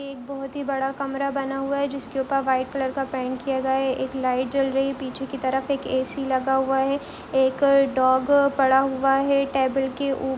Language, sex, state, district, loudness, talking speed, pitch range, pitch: Hindi, female, Chhattisgarh, Kabirdham, -23 LUFS, 220 wpm, 265-275 Hz, 270 Hz